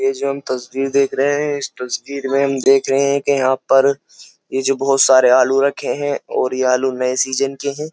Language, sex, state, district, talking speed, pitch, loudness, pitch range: Hindi, male, Uttar Pradesh, Jyotiba Phule Nagar, 235 wpm, 135 Hz, -17 LUFS, 130-140 Hz